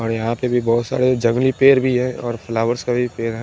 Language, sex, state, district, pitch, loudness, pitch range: Hindi, male, Chandigarh, Chandigarh, 120 Hz, -18 LUFS, 115-125 Hz